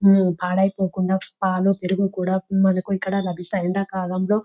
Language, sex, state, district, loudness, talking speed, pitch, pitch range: Telugu, female, Telangana, Nalgonda, -22 LUFS, 110 wpm, 190 Hz, 185-195 Hz